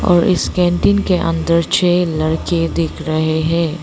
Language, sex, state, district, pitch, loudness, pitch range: Hindi, female, Arunachal Pradesh, Lower Dibang Valley, 170 Hz, -16 LUFS, 160-175 Hz